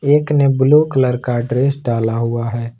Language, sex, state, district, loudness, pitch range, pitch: Hindi, male, Jharkhand, Ranchi, -16 LUFS, 120-140 Hz, 125 Hz